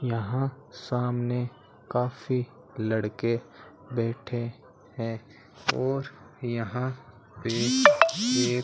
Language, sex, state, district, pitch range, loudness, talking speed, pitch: Hindi, male, Rajasthan, Bikaner, 115-130 Hz, -28 LUFS, 75 wpm, 120 Hz